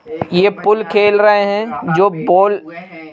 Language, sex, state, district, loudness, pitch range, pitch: Hindi, male, Madhya Pradesh, Bhopal, -13 LUFS, 170-205 Hz, 200 Hz